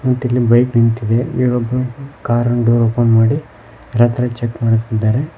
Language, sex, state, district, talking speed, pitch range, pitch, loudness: Kannada, male, Karnataka, Koppal, 135 wpm, 115-125 Hz, 120 Hz, -15 LUFS